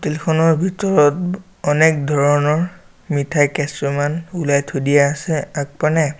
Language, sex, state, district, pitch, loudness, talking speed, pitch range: Assamese, male, Assam, Sonitpur, 150 Hz, -17 LUFS, 125 wpm, 145-165 Hz